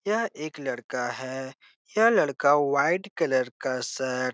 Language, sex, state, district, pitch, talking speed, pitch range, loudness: Hindi, male, Bihar, Jahanabad, 135 Hz, 150 wpm, 130-175 Hz, -26 LUFS